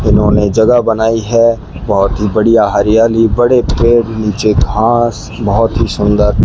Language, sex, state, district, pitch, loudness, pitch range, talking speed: Hindi, male, Rajasthan, Bikaner, 110 Hz, -11 LUFS, 105-115 Hz, 150 wpm